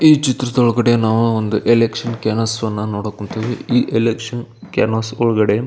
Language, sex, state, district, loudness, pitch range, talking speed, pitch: Kannada, male, Karnataka, Belgaum, -17 LUFS, 110-120 Hz, 160 wpm, 115 Hz